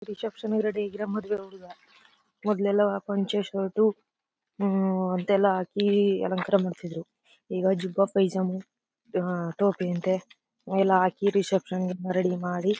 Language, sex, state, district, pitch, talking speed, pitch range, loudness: Kannada, female, Karnataka, Chamarajanagar, 195 Hz, 115 wpm, 185-205 Hz, -27 LUFS